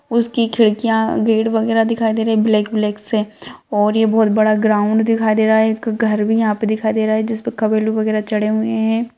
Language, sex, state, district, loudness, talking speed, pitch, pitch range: Hindi, female, Rajasthan, Churu, -16 LUFS, 220 wpm, 220 Hz, 215-225 Hz